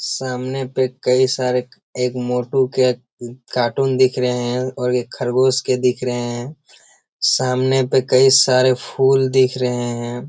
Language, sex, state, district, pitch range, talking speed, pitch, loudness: Hindi, male, Bihar, Jamui, 125-130 Hz, 150 wpm, 125 Hz, -18 LUFS